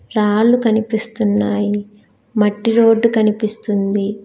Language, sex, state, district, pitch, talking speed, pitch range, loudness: Telugu, female, Telangana, Hyderabad, 215 Hz, 70 wpm, 205-225 Hz, -16 LUFS